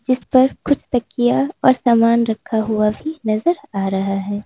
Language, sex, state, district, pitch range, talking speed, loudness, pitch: Hindi, female, Uttar Pradesh, Lalitpur, 215-260 Hz, 160 wpm, -18 LUFS, 235 Hz